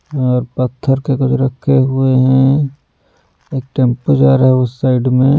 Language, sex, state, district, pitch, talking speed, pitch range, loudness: Hindi, male, Delhi, New Delhi, 130 Hz, 165 wpm, 130-135 Hz, -14 LUFS